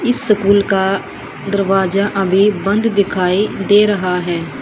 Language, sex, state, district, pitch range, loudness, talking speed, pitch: Hindi, female, Haryana, Rohtak, 185-205 Hz, -15 LUFS, 130 wpm, 195 Hz